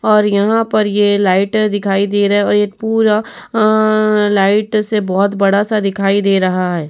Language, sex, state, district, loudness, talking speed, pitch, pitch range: Hindi, female, Uttar Pradesh, Etah, -13 LUFS, 185 wpm, 205 Hz, 195-215 Hz